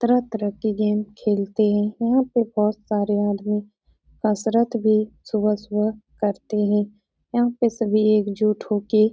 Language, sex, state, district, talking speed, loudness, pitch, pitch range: Hindi, female, Uttar Pradesh, Etah, 130 wpm, -22 LUFS, 215 Hz, 210-220 Hz